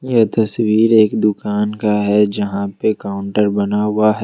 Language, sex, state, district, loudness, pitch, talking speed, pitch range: Hindi, male, Jharkhand, Ranchi, -16 LUFS, 105 Hz, 170 wpm, 105-110 Hz